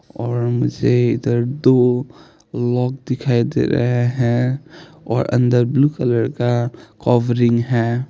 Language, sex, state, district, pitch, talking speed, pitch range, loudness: Hindi, male, Jharkhand, Sahebganj, 120 Hz, 120 wpm, 120-125 Hz, -18 LUFS